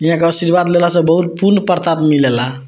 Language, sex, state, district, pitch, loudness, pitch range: Bhojpuri, male, Bihar, Muzaffarpur, 170 Hz, -12 LUFS, 155-175 Hz